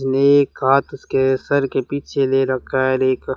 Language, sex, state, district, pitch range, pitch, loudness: Hindi, male, Rajasthan, Bikaner, 130-140 Hz, 135 Hz, -18 LUFS